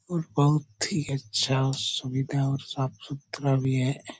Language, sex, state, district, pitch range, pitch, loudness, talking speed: Hindi, male, Chhattisgarh, Korba, 130-140 Hz, 135 Hz, -27 LUFS, 140 wpm